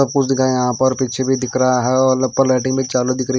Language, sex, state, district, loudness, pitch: Hindi, male, Himachal Pradesh, Shimla, -17 LUFS, 130 Hz